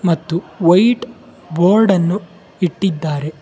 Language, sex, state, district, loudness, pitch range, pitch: Kannada, male, Karnataka, Bangalore, -16 LUFS, 165-195 Hz, 180 Hz